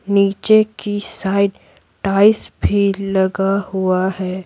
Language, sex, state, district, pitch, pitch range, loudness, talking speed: Hindi, female, Bihar, Patna, 195 Hz, 190-205 Hz, -17 LUFS, 105 wpm